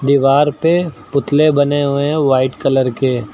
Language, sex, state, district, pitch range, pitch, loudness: Hindi, male, Uttar Pradesh, Lucknow, 135-150 Hz, 140 Hz, -14 LUFS